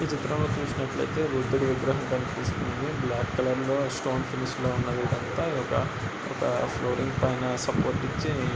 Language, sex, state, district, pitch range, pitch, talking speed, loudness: Telugu, male, Andhra Pradesh, Guntur, 125-140 Hz, 130 Hz, 140 wpm, -28 LUFS